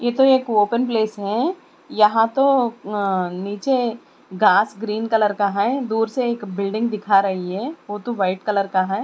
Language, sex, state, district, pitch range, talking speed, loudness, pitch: Hindi, female, Chandigarh, Chandigarh, 200-240 Hz, 185 wpm, -20 LUFS, 215 Hz